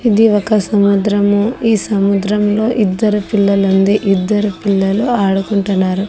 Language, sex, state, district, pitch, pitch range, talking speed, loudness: Telugu, female, Andhra Pradesh, Annamaya, 205 Hz, 195-215 Hz, 110 wpm, -13 LUFS